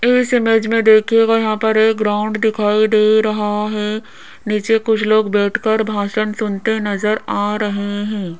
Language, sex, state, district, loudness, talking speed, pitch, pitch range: Hindi, female, Rajasthan, Jaipur, -16 LUFS, 165 wpm, 215 Hz, 210-220 Hz